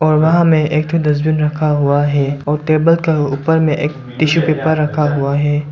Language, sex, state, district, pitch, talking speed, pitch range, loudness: Hindi, male, Arunachal Pradesh, Lower Dibang Valley, 150 Hz, 210 wpm, 145-155 Hz, -14 LUFS